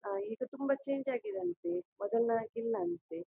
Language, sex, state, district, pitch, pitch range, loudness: Kannada, female, Karnataka, Dakshina Kannada, 220 Hz, 175-245 Hz, -36 LUFS